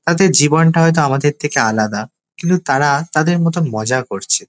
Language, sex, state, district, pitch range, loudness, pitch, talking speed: Bengali, male, West Bengal, Dakshin Dinajpur, 135-170 Hz, -15 LUFS, 155 Hz, 160 wpm